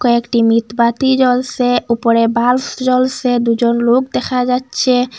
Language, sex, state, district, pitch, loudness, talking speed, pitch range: Bengali, female, Assam, Hailakandi, 245 Hz, -14 LUFS, 115 wpm, 235-255 Hz